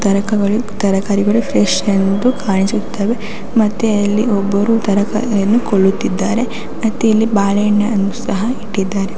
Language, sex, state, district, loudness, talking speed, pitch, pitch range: Kannada, female, Karnataka, Raichur, -15 LUFS, 105 wpm, 210 Hz, 200-220 Hz